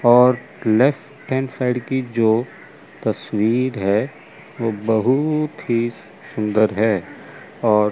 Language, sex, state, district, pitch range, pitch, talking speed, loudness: Hindi, male, Chandigarh, Chandigarh, 110-130 Hz, 120 Hz, 115 wpm, -20 LUFS